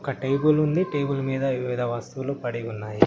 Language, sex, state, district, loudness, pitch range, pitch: Telugu, male, Telangana, Mahabubabad, -25 LUFS, 120-140 Hz, 135 Hz